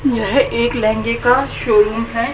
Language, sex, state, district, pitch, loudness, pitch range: Hindi, female, Haryana, Rohtak, 230 Hz, -16 LUFS, 220-245 Hz